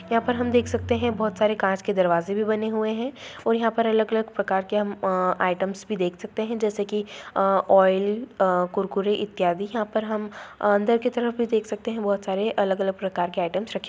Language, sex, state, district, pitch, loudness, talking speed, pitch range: Hindi, female, Bihar, Darbhanga, 210 Hz, -24 LUFS, 220 wpm, 190-220 Hz